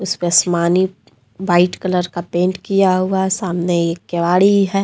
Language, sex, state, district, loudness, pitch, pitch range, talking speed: Hindi, female, Jharkhand, Deoghar, -16 LUFS, 180 Hz, 175-190 Hz, 150 wpm